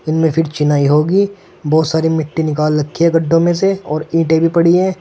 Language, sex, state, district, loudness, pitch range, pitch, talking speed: Hindi, male, Uttar Pradesh, Saharanpur, -14 LUFS, 155-170 Hz, 160 Hz, 190 wpm